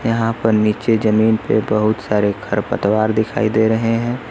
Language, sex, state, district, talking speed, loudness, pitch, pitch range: Hindi, male, Uttar Pradesh, Lucknow, 165 wpm, -17 LUFS, 110 Hz, 105-115 Hz